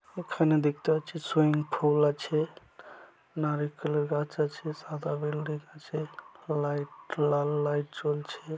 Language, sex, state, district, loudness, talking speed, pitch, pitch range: Bengali, male, West Bengal, Dakshin Dinajpur, -30 LUFS, 120 wpm, 150 Hz, 150-155 Hz